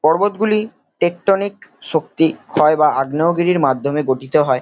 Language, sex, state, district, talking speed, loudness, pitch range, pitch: Bengali, male, West Bengal, Kolkata, 115 wpm, -17 LUFS, 150-190 Hz, 160 Hz